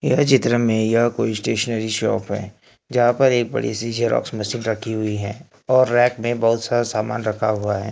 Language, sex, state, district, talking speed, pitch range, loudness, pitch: Hindi, male, Maharashtra, Gondia, 205 wpm, 105-120 Hz, -20 LUFS, 115 Hz